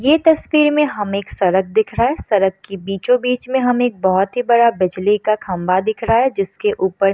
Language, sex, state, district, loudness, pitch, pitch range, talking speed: Hindi, female, Bihar, Samastipur, -17 LUFS, 210 Hz, 195-245 Hz, 220 wpm